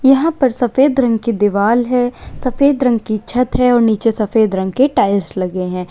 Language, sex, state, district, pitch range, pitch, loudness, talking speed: Hindi, female, Uttar Pradesh, Lalitpur, 205-255 Hz, 235 Hz, -15 LUFS, 195 wpm